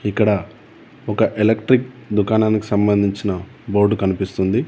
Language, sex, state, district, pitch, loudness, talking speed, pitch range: Telugu, male, Telangana, Komaram Bheem, 105 Hz, -18 LUFS, 90 wpm, 100-110 Hz